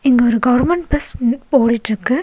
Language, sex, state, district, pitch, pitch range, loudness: Tamil, female, Tamil Nadu, Nilgiris, 250 Hz, 235-275 Hz, -16 LUFS